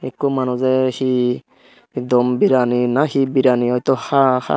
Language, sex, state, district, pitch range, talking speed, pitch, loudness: Chakma, male, Tripura, Dhalai, 125-130 Hz, 145 wpm, 130 Hz, -17 LUFS